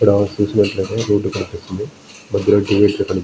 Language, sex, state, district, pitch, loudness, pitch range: Telugu, male, Andhra Pradesh, Srikakulam, 100 Hz, -17 LUFS, 100-105 Hz